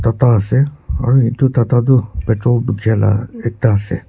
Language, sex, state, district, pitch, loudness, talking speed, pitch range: Nagamese, male, Nagaland, Kohima, 115 Hz, -15 LUFS, 160 wpm, 110-125 Hz